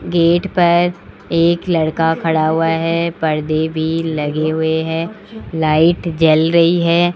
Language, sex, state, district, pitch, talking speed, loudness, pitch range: Hindi, male, Rajasthan, Jaipur, 165 Hz, 135 wpm, -15 LUFS, 160-170 Hz